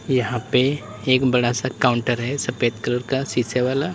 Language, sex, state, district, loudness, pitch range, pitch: Hindi, male, Uttar Pradesh, Lalitpur, -21 LUFS, 120-130 Hz, 125 Hz